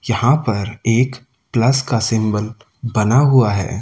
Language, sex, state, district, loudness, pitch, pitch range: Hindi, male, Delhi, New Delhi, -17 LUFS, 115 Hz, 110-130 Hz